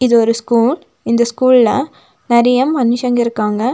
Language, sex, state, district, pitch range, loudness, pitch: Tamil, female, Tamil Nadu, Nilgiris, 235-255 Hz, -14 LUFS, 240 Hz